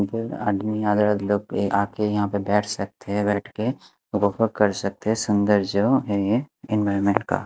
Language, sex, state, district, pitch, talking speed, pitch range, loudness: Hindi, male, Haryana, Rohtak, 105 Hz, 160 wpm, 100-105 Hz, -23 LUFS